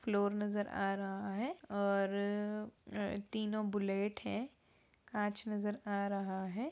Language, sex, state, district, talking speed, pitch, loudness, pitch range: Hindi, female, Uttar Pradesh, Budaun, 135 wpm, 205 Hz, -38 LUFS, 200-210 Hz